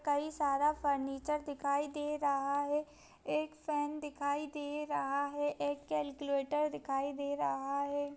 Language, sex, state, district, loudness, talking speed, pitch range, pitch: Hindi, female, Bihar, Darbhanga, -36 LUFS, 140 wpm, 280-295 Hz, 285 Hz